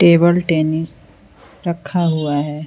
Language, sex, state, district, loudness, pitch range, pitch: Hindi, female, Uttar Pradesh, Lucknow, -17 LUFS, 150-170 Hz, 160 Hz